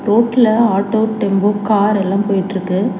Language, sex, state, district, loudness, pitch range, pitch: Tamil, female, Tamil Nadu, Chennai, -15 LUFS, 195-220 Hz, 205 Hz